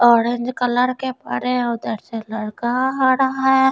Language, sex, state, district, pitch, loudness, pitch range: Hindi, female, Delhi, New Delhi, 245 Hz, -20 LUFS, 230-260 Hz